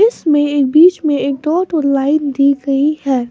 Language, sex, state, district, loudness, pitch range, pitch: Hindi, female, Maharashtra, Washim, -13 LUFS, 275-310 Hz, 290 Hz